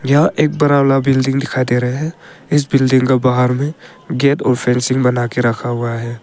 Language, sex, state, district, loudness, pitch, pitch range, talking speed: Hindi, male, Arunachal Pradesh, Papum Pare, -15 LUFS, 130 Hz, 125-140 Hz, 200 wpm